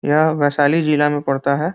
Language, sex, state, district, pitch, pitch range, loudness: Hindi, male, Bihar, Muzaffarpur, 150 Hz, 145-155 Hz, -17 LUFS